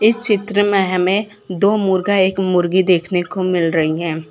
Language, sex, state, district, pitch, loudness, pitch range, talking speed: Hindi, female, Gujarat, Valsad, 185 Hz, -16 LUFS, 180-205 Hz, 180 wpm